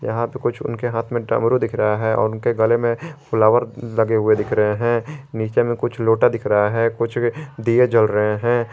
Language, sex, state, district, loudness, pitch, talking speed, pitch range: Hindi, male, Jharkhand, Garhwa, -19 LUFS, 115 Hz, 220 wpm, 110-120 Hz